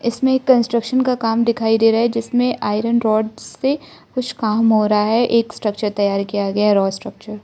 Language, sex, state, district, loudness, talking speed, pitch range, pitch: Hindi, female, Arunachal Pradesh, Lower Dibang Valley, -18 LUFS, 200 wpm, 210-235 Hz, 225 Hz